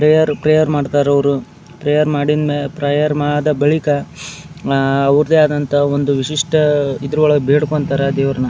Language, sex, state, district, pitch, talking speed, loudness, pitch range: Kannada, male, Karnataka, Dharwad, 145 Hz, 125 wpm, -15 LUFS, 140-150 Hz